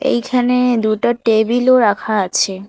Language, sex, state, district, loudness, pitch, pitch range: Bengali, female, West Bengal, Alipurduar, -15 LUFS, 235 Hz, 215-250 Hz